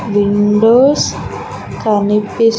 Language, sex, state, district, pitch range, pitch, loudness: Telugu, female, Andhra Pradesh, Sri Satya Sai, 205-230 Hz, 210 Hz, -12 LUFS